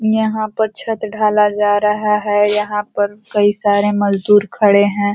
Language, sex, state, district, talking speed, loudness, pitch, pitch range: Hindi, female, Uttar Pradesh, Ghazipur, 165 wpm, -15 LUFS, 210 Hz, 205-215 Hz